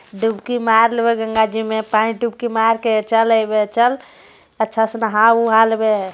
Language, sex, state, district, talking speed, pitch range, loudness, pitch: Hindi, female, Bihar, Jamui, 185 wpm, 220-230 Hz, -16 LUFS, 225 Hz